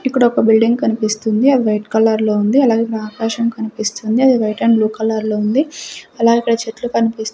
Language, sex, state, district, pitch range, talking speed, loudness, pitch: Telugu, female, Andhra Pradesh, Sri Satya Sai, 220-235 Hz, 170 wpm, -15 LUFS, 225 Hz